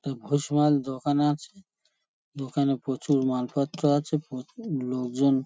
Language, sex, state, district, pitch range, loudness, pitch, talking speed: Bengali, male, West Bengal, Paschim Medinipur, 135-150 Hz, -27 LUFS, 145 Hz, 110 wpm